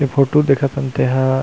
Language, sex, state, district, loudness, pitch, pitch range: Chhattisgarhi, male, Chhattisgarh, Rajnandgaon, -16 LUFS, 135 Hz, 130-140 Hz